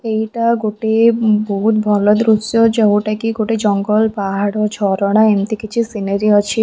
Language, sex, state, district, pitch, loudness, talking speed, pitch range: Odia, female, Odisha, Khordha, 215 Hz, -15 LUFS, 135 wpm, 205-220 Hz